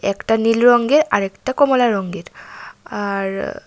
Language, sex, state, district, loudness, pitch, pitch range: Bengali, female, Tripura, West Tripura, -17 LUFS, 225 Hz, 200-245 Hz